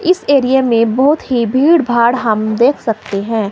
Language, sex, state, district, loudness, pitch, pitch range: Hindi, female, Himachal Pradesh, Shimla, -13 LUFS, 240 Hz, 225-275 Hz